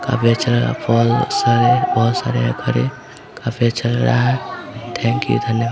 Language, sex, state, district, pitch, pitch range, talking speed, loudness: Hindi, male, Bihar, Samastipur, 115 Hz, 110-120 Hz, 190 wpm, -17 LUFS